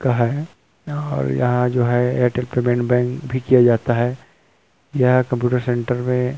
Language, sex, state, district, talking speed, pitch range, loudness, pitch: Hindi, male, Chhattisgarh, Rajnandgaon, 160 wpm, 120-130 Hz, -19 LUFS, 125 Hz